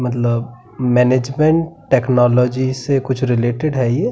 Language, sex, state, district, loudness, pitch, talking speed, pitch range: Hindi, male, Uttarakhand, Tehri Garhwal, -16 LUFS, 125 Hz, 115 wpm, 120-135 Hz